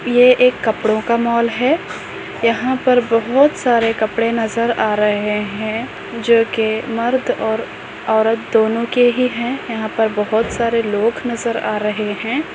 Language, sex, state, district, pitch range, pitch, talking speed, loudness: Hindi, female, Maharashtra, Nagpur, 220-240 Hz, 230 Hz, 155 wpm, -17 LUFS